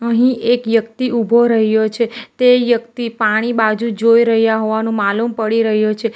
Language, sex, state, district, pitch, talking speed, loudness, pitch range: Gujarati, female, Gujarat, Valsad, 230 Hz, 165 wpm, -15 LUFS, 220-235 Hz